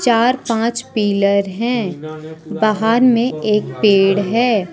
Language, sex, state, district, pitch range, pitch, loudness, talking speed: Hindi, male, Jharkhand, Deoghar, 200-235 Hz, 215 Hz, -16 LUFS, 115 wpm